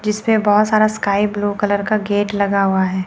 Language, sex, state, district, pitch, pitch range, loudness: Hindi, female, Chandigarh, Chandigarh, 205 Hz, 200-215 Hz, -16 LUFS